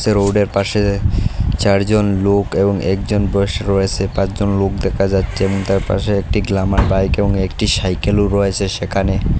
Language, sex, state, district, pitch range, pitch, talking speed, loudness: Bengali, male, Assam, Hailakandi, 95-100 Hz, 100 Hz, 160 wpm, -16 LUFS